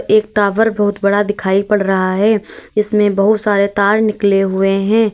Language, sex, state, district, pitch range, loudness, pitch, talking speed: Hindi, female, Uttar Pradesh, Lalitpur, 195-215 Hz, -14 LUFS, 205 Hz, 175 wpm